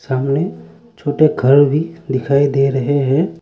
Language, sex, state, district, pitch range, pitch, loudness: Hindi, male, Arunachal Pradesh, Lower Dibang Valley, 135-145 Hz, 140 Hz, -15 LUFS